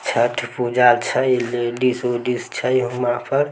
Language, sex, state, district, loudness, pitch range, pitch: Maithili, male, Bihar, Samastipur, -19 LUFS, 120-130 Hz, 125 Hz